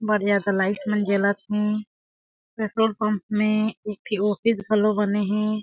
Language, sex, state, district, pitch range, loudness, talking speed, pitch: Chhattisgarhi, female, Chhattisgarh, Jashpur, 205-215 Hz, -23 LUFS, 160 wpm, 210 Hz